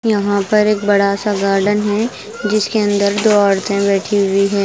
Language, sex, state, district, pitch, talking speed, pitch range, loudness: Hindi, female, Himachal Pradesh, Shimla, 205 Hz, 180 wpm, 200-210 Hz, -15 LUFS